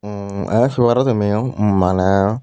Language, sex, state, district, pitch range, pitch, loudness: Chakma, female, Tripura, Unakoti, 100-120 Hz, 105 Hz, -17 LUFS